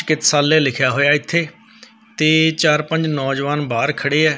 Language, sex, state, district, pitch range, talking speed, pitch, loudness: Punjabi, male, Punjab, Fazilka, 140-160 Hz, 135 wpm, 155 Hz, -16 LUFS